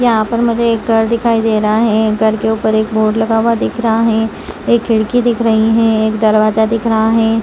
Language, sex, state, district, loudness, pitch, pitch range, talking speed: Hindi, female, Chhattisgarh, Rajnandgaon, -13 LUFS, 225 Hz, 220-230 Hz, 235 wpm